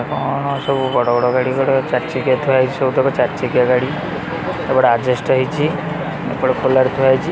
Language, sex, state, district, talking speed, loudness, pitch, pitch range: Odia, male, Odisha, Khordha, 170 wpm, -17 LUFS, 130 Hz, 130-140 Hz